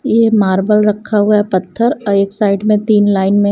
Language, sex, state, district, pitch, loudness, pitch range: Hindi, female, Punjab, Kapurthala, 205 Hz, -13 LUFS, 200-215 Hz